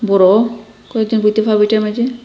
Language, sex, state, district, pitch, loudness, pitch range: Bengali, female, Assam, Hailakandi, 220 Hz, -14 LUFS, 210-230 Hz